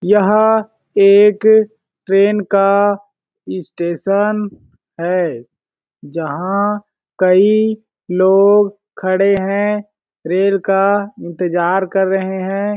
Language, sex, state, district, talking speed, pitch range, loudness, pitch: Hindi, male, Chhattisgarh, Balrampur, 80 wpm, 190-210 Hz, -14 LUFS, 200 Hz